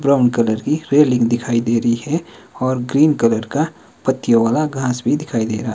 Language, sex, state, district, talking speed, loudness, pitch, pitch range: Hindi, male, Himachal Pradesh, Shimla, 200 wpm, -17 LUFS, 125 Hz, 115-145 Hz